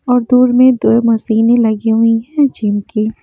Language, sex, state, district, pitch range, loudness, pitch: Hindi, female, Haryana, Jhajjar, 220-250 Hz, -12 LUFS, 230 Hz